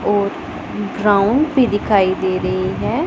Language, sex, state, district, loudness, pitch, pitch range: Hindi, female, Punjab, Pathankot, -17 LUFS, 205 Hz, 190-220 Hz